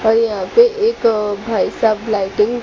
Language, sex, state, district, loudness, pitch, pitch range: Hindi, female, Gujarat, Gandhinagar, -16 LUFS, 220 Hz, 210-235 Hz